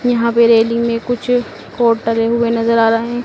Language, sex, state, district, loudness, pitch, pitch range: Hindi, female, Madhya Pradesh, Dhar, -14 LUFS, 235 Hz, 230-240 Hz